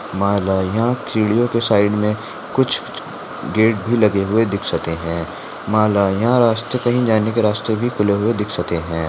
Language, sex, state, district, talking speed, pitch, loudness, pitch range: Hindi, male, Maharashtra, Sindhudurg, 150 wpm, 105 Hz, -18 LUFS, 100-115 Hz